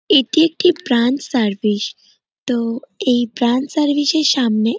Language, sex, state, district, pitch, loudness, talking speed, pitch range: Bengali, male, West Bengal, North 24 Parganas, 250 Hz, -17 LUFS, 125 wpm, 235-290 Hz